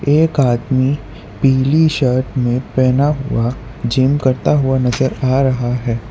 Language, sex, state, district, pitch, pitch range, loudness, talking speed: Hindi, male, Gujarat, Valsad, 130 Hz, 125-135 Hz, -15 LUFS, 135 wpm